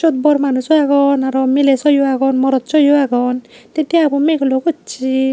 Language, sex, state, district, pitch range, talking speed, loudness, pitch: Chakma, female, Tripura, Unakoti, 265-295 Hz, 170 wpm, -14 LUFS, 275 Hz